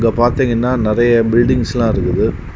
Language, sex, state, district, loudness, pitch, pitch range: Tamil, male, Tamil Nadu, Kanyakumari, -14 LUFS, 120 Hz, 115-125 Hz